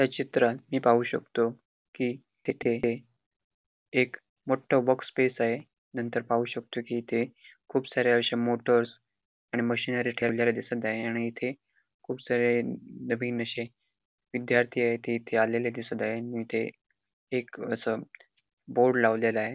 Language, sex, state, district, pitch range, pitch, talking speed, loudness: Marathi, male, Goa, North and South Goa, 115-125 Hz, 120 Hz, 140 wpm, -29 LUFS